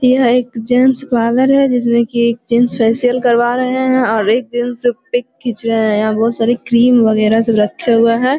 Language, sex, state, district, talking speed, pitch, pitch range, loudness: Hindi, female, Bihar, Jamui, 205 wpm, 240 Hz, 230-250 Hz, -13 LUFS